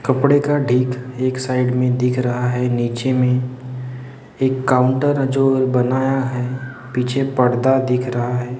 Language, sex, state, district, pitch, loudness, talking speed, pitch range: Hindi, male, Maharashtra, Gondia, 125 Hz, -18 LUFS, 155 wpm, 125-130 Hz